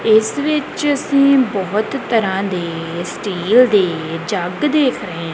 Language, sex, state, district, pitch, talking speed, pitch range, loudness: Punjabi, female, Punjab, Kapurthala, 215 Hz, 135 wpm, 175-275 Hz, -17 LUFS